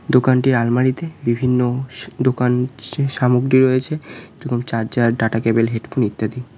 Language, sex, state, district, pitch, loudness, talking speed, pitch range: Bengali, male, West Bengal, Cooch Behar, 125 Hz, -18 LUFS, 135 wpm, 120-130 Hz